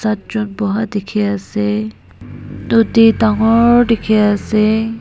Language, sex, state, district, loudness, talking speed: Nagamese, female, Nagaland, Dimapur, -14 LUFS, 85 wpm